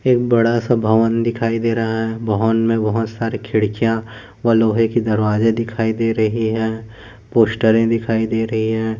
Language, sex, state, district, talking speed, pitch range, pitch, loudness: Hindi, male, Goa, North and South Goa, 175 wpm, 110-115 Hz, 115 Hz, -18 LUFS